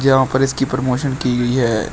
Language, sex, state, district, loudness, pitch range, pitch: Hindi, male, Uttar Pradesh, Shamli, -17 LUFS, 125-135 Hz, 130 Hz